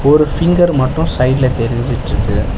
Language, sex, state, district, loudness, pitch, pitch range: Tamil, male, Tamil Nadu, Chennai, -14 LUFS, 135 Hz, 125-155 Hz